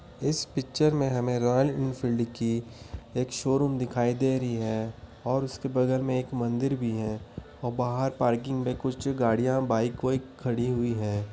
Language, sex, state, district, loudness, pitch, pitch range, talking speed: Hindi, male, Chhattisgarh, Korba, -28 LUFS, 125 Hz, 115-130 Hz, 170 wpm